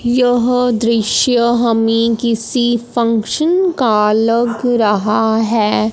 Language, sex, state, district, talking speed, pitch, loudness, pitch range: Hindi, male, Punjab, Fazilka, 90 wpm, 230 Hz, -14 LUFS, 225-245 Hz